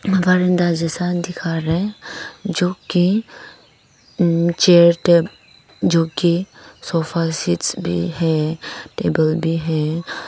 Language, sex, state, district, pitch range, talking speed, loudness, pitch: Hindi, female, Arunachal Pradesh, Papum Pare, 160-180 Hz, 110 wpm, -18 LUFS, 170 Hz